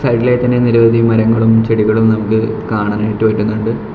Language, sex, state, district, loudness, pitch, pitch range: Malayalam, male, Kerala, Kollam, -13 LUFS, 110 Hz, 110-115 Hz